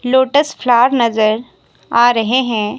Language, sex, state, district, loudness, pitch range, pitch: Hindi, female, Himachal Pradesh, Shimla, -14 LUFS, 225-260 Hz, 240 Hz